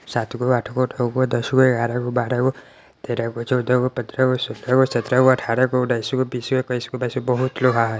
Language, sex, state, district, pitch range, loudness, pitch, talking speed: Bajjika, female, Bihar, Vaishali, 120-130 Hz, -20 LUFS, 125 Hz, 260 wpm